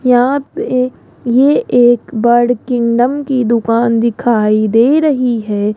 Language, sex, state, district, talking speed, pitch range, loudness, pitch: Hindi, female, Rajasthan, Jaipur, 115 wpm, 230-255 Hz, -12 LUFS, 240 Hz